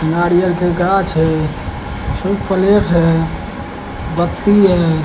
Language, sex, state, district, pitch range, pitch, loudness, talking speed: Hindi, male, Bihar, Patna, 165-190 Hz, 175 Hz, -15 LUFS, 105 wpm